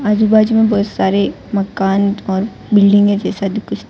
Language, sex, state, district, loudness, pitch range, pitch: Hindi, female, Gujarat, Valsad, -14 LUFS, 200-215 Hz, 205 Hz